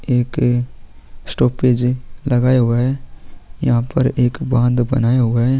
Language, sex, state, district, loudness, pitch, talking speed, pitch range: Hindi, male, Chhattisgarh, Sukma, -17 LUFS, 125 Hz, 140 wpm, 120-130 Hz